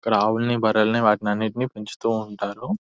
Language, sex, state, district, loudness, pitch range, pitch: Telugu, male, Telangana, Nalgonda, -22 LUFS, 105-115 Hz, 110 Hz